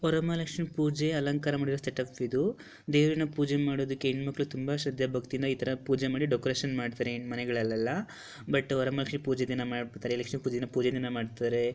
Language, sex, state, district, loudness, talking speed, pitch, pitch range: Kannada, female, Karnataka, Dharwad, -31 LUFS, 155 wpm, 130 Hz, 125-145 Hz